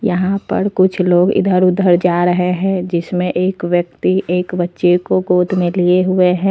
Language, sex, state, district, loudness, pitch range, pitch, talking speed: Hindi, female, Jharkhand, Ranchi, -15 LUFS, 175-185 Hz, 180 Hz, 185 wpm